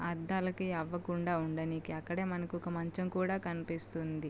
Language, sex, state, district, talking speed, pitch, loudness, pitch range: Telugu, female, Andhra Pradesh, Guntur, 140 wpm, 175 Hz, -37 LUFS, 165-185 Hz